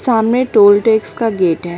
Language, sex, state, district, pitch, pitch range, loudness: Hindi, female, West Bengal, Alipurduar, 220 Hz, 205-230 Hz, -13 LUFS